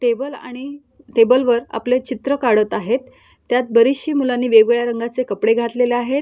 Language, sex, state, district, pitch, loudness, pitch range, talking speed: Marathi, female, Maharashtra, Solapur, 245 Hz, -17 LUFS, 235-260 Hz, 155 wpm